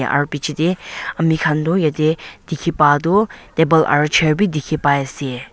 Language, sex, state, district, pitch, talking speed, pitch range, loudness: Nagamese, female, Nagaland, Dimapur, 155 Hz, 185 wpm, 145-165 Hz, -17 LUFS